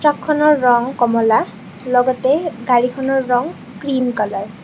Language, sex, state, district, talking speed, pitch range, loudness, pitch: Assamese, female, Assam, Kamrup Metropolitan, 115 wpm, 230-270 Hz, -16 LUFS, 250 Hz